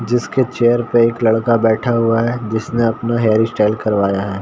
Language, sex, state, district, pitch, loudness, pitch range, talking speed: Hindi, male, Bihar, Saran, 115 Hz, -16 LUFS, 110-120 Hz, 190 wpm